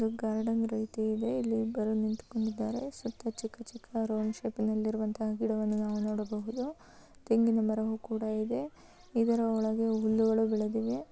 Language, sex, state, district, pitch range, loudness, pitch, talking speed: Kannada, female, Karnataka, Chamarajanagar, 220-230 Hz, -32 LUFS, 220 Hz, 65 wpm